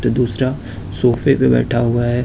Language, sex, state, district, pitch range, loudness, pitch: Hindi, male, Uttar Pradesh, Lucknow, 115-125 Hz, -16 LUFS, 120 Hz